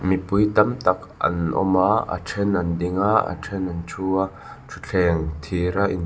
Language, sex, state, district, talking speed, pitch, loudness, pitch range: Mizo, male, Mizoram, Aizawl, 200 wpm, 95 Hz, -22 LUFS, 90-100 Hz